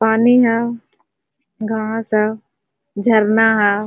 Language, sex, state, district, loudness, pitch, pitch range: Hindi, female, Jharkhand, Sahebganj, -16 LUFS, 220 Hz, 215-230 Hz